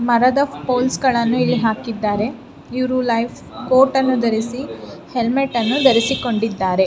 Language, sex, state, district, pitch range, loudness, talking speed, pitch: Kannada, female, Karnataka, Raichur, 230-260 Hz, -18 LUFS, 115 wpm, 245 Hz